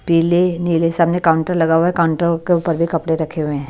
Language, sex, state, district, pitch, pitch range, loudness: Hindi, female, Bihar, Patna, 165 Hz, 165-170 Hz, -16 LUFS